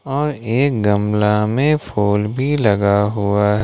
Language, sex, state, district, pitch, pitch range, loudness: Hindi, male, Jharkhand, Ranchi, 105 Hz, 105-135 Hz, -17 LUFS